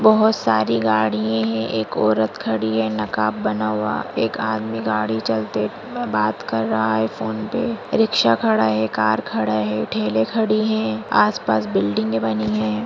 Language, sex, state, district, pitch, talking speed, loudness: Hindi, female, Chhattisgarh, Bastar, 110 Hz, 160 wpm, -20 LUFS